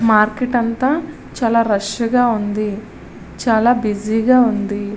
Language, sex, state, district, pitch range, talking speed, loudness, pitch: Telugu, female, Andhra Pradesh, Visakhapatnam, 210-245 Hz, 120 wpm, -17 LUFS, 230 Hz